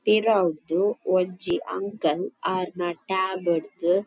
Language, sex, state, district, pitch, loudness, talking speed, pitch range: Tulu, female, Karnataka, Dakshina Kannada, 185 Hz, -25 LUFS, 75 wpm, 175-190 Hz